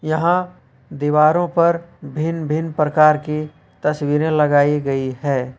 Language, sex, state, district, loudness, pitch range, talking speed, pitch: Hindi, male, Jharkhand, Ranchi, -18 LUFS, 145-160 Hz, 120 wpm, 150 Hz